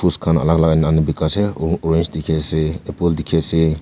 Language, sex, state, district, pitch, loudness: Nagamese, male, Nagaland, Kohima, 80 Hz, -18 LUFS